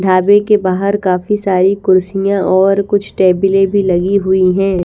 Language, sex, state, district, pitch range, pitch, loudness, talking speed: Hindi, female, Haryana, Rohtak, 185-200 Hz, 195 Hz, -12 LUFS, 160 wpm